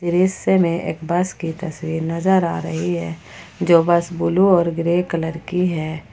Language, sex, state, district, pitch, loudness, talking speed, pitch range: Hindi, female, Jharkhand, Ranchi, 170 Hz, -19 LUFS, 175 wpm, 160-180 Hz